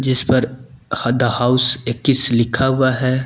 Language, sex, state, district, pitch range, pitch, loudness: Hindi, male, Uttar Pradesh, Lucknow, 120-130 Hz, 130 Hz, -16 LUFS